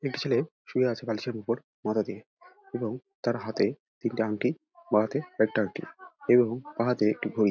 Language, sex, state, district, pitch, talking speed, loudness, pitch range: Bengali, male, West Bengal, Dakshin Dinajpur, 125 Hz, 185 wpm, -29 LUFS, 110-160 Hz